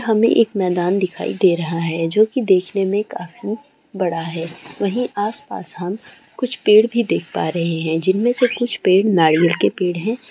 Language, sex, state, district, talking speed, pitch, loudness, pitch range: Hindi, female, West Bengal, Jalpaiguri, 185 wpm, 195 Hz, -18 LUFS, 175-225 Hz